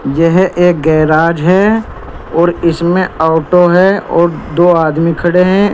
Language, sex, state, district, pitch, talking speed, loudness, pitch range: Hindi, male, Uttar Pradesh, Saharanpur, 175 Hz, 135 wpm, -10 LUFS, 160-180 Hz